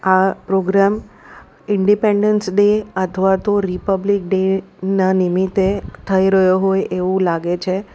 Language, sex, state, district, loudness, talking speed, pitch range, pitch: Gujarati, female, Gujarat, Valsad, -17 LUFS, 120 wpm, 185-200 Hz, 190 Hz